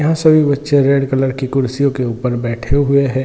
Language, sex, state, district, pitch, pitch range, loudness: Hindi, male, Chhattisgarh, Bilaspur, 135 Hz, 130-140 Hz, -15 LUFS